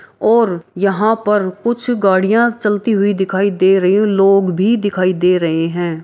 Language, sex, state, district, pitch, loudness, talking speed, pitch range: Maithili, female, Bihar, Araria, 195 Hz, -14 LUFS, 170 wpm, 185-220 Hz